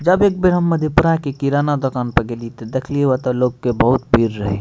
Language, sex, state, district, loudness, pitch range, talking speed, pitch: Maithili, male, Bihar, Madhepura, -17 LUFS, 120-155 Hz, 245 wpm, 135 Hz